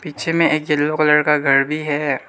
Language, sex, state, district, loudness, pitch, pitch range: Hindi, male, Arunachal Pradesh, Lower Dibang Valley, -17 LUFS, 150 Hz, 145-155 Hz